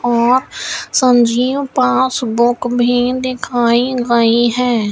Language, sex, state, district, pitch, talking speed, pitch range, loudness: Hindi, female, Rajasthan, Bikaner, 245 Hz, 95 wpm, 235-255 Hz, -14 LUFS